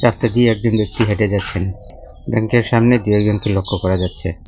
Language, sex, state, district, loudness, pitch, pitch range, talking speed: Bengali, male, West Bengal, Cooch Behar, -17 LUFS, 105 Hz, 95-115 Hz, 105 wpm